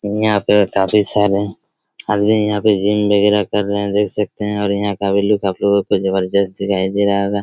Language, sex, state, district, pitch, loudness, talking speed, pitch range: Hindi, male, Chhattisgarh, Raigarh, 100 Hz, -16 LUFS, 220 wpm, 100-105 Hz